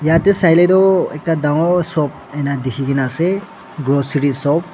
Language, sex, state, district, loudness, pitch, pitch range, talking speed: Nagamese, male, Nagaland, Dimapur, -16 LUFS, 155 Hz, 140-175 Hz, 150 wpm